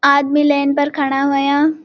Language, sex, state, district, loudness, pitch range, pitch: Garhwali, female, Uttarakhand, Uttarkashi, -15 LUFS, 280-290 Hz, 280 Hz